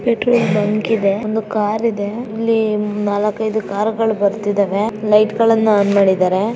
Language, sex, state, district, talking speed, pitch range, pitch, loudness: Kannada, female, Karnataka, Raichur, 145 wpm, 205-220 Hz, 215 Hz, -16 LUFS